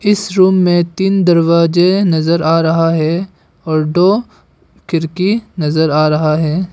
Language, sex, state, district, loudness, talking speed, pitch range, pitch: Hindi, male, Arunachal Pradesh, Longding, -13 LUFS, 145 wpm, 160-185 Hz, 170 Hz